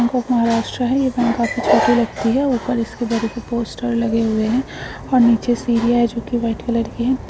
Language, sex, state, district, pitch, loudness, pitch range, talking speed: Hindi, female, Maharashtra, Aurangabad, 235 Hz, -18 LUFS, 230-245 Hz, 180 wpm